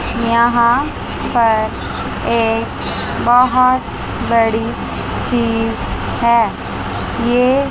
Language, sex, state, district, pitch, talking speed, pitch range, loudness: Hindi, female, Chandigarh, Chandigarh, 235 Hz, 60 wpm, 225-240 Hz, -16 LUFS